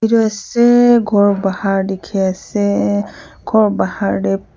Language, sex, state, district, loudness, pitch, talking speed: Nagamese, female, Nagaland, Kohima, -15 LUFS, 195 Hz, 120 wpm